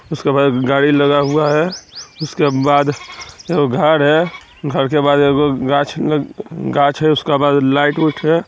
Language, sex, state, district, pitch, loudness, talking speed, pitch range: Magahi, male, Bihar, Jamui, 145 Hz, -14 LUFS, 165 wpm, 140-155 Hz